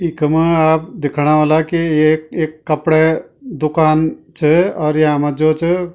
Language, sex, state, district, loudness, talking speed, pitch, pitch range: Garhwali, male, Uttarakhand, Tehri Garhwal, -15 LUFS, 140 wpm, 155 Hz, 155-165 Hz